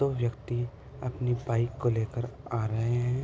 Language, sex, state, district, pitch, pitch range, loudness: Hindi, male, Uttar Pradesh, Budaun, 120 Hz, 115-125 Hz, -31 LUFS